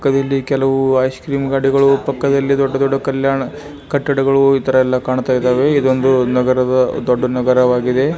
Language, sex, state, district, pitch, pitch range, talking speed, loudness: Kannada, male, Karnataka, Bijapur, 135 Hz, 130-140 Hz, 125 wpm, -15 LUFS